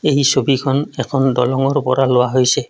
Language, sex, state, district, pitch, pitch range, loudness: Assamese, male, Assam, Kamrup Metropolitan, 135 Hz, 130-135 Hz, -16 LUFS